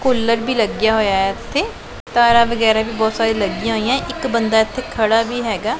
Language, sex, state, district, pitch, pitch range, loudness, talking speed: Punjabi, female, Punjab, Pathankot, 225 Hz, 220-235 Hz, -17 LUFS, 185 wpm